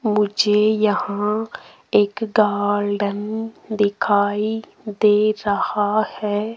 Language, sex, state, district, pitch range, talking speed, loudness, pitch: Hindi, female, Rajasthan, Jaipur, 205-215 Hz, 75 wpm, -20 LUFS, 210 Hz